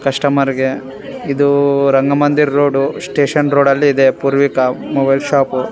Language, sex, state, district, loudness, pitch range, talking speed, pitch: Kannada, male, Karnataka, Raichur, -13 LUFS, 135-145 Hz, 115 wpm, 140 Hz